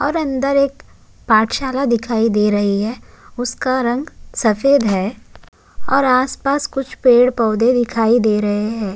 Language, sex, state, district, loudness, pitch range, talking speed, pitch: Hindi, male, Uttarakhand, Tehri Garhwal, -16 LUFS, 220-270 Hz, 135 wpm, 245 Hz